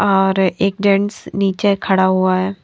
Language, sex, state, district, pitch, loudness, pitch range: Hindi, female, Himachal Pradesh, Shimla, 195 Hz, -16 LUFS, 190-200 Hz